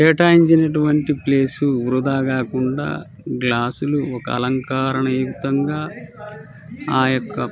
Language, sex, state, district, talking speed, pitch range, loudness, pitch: Telugu, male, Telangana, Nalgonda, 65 wpm, 130-150 Hz, -19 LUFS, 135 Hz